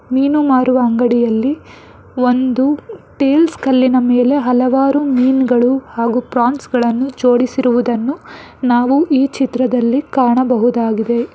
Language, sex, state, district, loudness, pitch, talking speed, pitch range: Kannada, female, Karnataka, Bangalore, -14 LUFS, 255 Hz, 90 wpm, 245-270 Hz